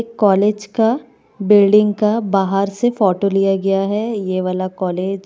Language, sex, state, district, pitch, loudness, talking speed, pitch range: Hindi, female, Bihar, Kishanganj, 200 Hz, -16 LUFS, 170 wpm, 195-210 Hz